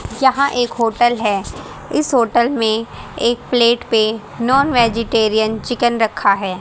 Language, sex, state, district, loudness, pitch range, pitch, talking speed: Hindi, female, Haryana, Charkhi Dadri, -16 LUFS, 220-245 Hz, 235 Hz, 135 wpm